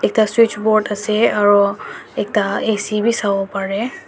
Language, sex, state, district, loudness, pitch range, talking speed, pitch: Nagamese, male, Nagaland, Dimapur, -17 LUFS, 200-220 Hz, 130 wpm, 210 Hz